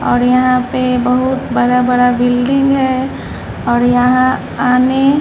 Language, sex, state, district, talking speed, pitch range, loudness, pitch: Hindi, female, Bihar, Patna, 125 wpm, 245-260 Hz, -13 LUFS, 250 Hz